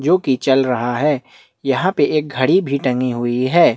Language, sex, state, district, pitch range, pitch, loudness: Hindi, male, Chhattisgarh, Bastar, 125-150 Hz, 135 Hz, -17 LUFS